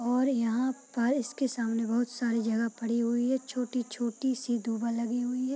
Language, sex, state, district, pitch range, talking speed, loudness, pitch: Hindi, female, Bihar, Purnia, 230-255 Hz, 185 wpm, -30 LUFS, 240 Hz